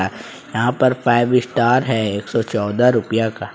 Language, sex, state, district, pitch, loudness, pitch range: Hindi, male, Jharkhand, Ranchi, 120 Hz, -18 LUFS, 110-125 Hz